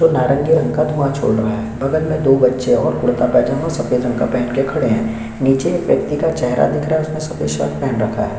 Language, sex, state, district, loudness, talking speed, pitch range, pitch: Hindi, male, Chhattisgarh, Sukma, -17 LUFS, 245 wpm, 115-155 Hz, 135 Hz